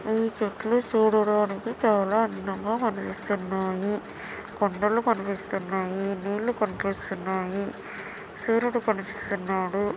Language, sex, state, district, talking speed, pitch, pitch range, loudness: Telugu, female, Andhra Pradesh, Anantapur, 70 wpm, 205 Hz, 195-220 Hz, -27 LUFS